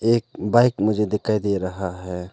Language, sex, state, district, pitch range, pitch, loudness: Hindi, male, Arunachal Pradesh, Lower Dibang Valley, 95-110 Hz, 105 Hz, -22 LUFS